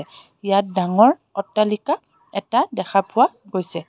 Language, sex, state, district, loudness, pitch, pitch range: Assamese, female, Assam, Kamrup Metropolitan, -20 LUFS, 200 Hz, 190-230 Hz